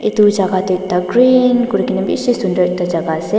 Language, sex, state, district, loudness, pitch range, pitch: Nagamese, female, Nagaland, Dimapur, -14 LUFS, 180-230 Hz, 190 Hz